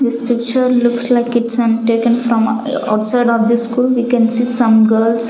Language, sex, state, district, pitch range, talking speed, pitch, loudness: English, female, Chandigarh, Chandigarh, 230-245 Hz, 180 wpm, 235 Hz, -13 LUFS